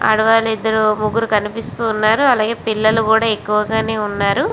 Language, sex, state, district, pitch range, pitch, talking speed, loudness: Telugu, female, Andhra Pradesh, Visakhapatnam, 215-225 Hz, 220 Hz, 145 wpm, -16 LUFS